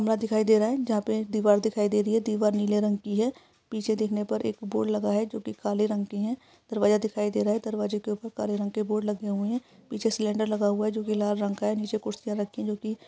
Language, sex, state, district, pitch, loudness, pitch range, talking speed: Hindi, female, Uttarakhand, Uttarkashi, 215 Hz, -27 LUFS, 210-220 Hz, 285 wpm